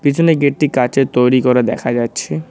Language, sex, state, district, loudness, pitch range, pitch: Bengali, male, West Bengal, Cooch Behar, -14 LUFS, 125-140 Hz, 125 Hz